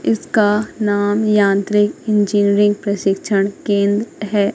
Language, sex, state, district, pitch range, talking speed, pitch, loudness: Hindi, female, Madhya Pradesh, Katni, 200-210 Hz, 90 wpm, 205 Hz, -16 LUFS